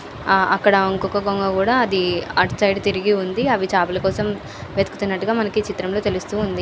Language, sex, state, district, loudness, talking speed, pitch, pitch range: Telugu, female, Andhra Pradesh, Anantapur, -19 LUFS, 170 wpm, 195 Hz, 190-210 Hz